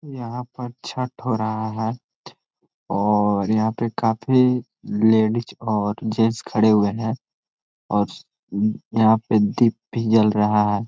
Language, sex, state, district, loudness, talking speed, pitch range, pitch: Hindi, male, Chhattisgarh, Korba, -21 LUFS, 130 wpm, 105-115 Hz, 110 Hz